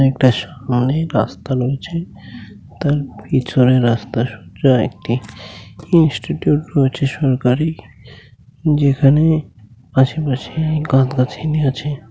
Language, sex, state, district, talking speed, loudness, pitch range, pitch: Bengali, male, West Bengal, North 24 Parganas, 85 wpm, -17 LUFS, 120-145 Hz, 130 Hz